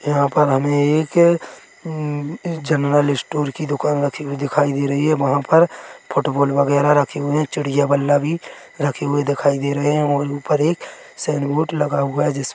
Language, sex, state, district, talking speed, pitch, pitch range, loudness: Hindi, male, Chhattisgarh, Bilaspur, 185 wpm, 145 Hz, 140-150 Hz, -19 LUFS